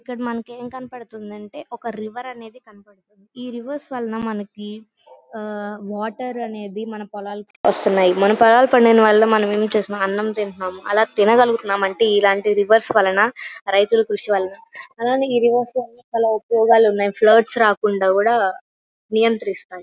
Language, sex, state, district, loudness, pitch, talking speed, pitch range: Telugu, female, Andhra Pradesh, Guntur, -18 LUFS, 220 Hz, 135 wpm, 205-235 Hz